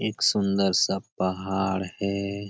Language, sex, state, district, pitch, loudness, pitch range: Hindi, male, Jharkhand, Sahebganj, 100 Hz, -26 LUFS, 95-100 Hz